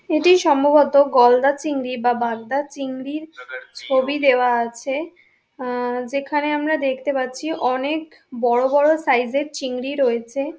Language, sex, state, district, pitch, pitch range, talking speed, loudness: Bengali, female, West Bengal, Dakshin Dinajpur, 275 Hz, 250-295 Hz, 120 wpm, -19 LUFS